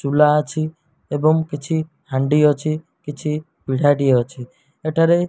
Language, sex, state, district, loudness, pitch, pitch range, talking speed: Odia, male, Odisha, Malkangiri, -19 LUFS, 150 Hz, 145-160 Hz, 115 wpm